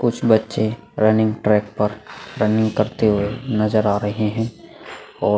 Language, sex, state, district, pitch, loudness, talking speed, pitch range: Hindi, male, Goa, North and South Goa, 110 Hz, -19 LUFS, 155 wpm, 105-110 Hz